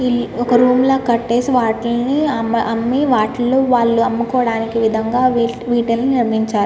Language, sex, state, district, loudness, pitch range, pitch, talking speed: Telugu, female, Andhra Pradesh, Guntur, -16 LUFS, 230-250 Hz, 240 Hz, 110 wpm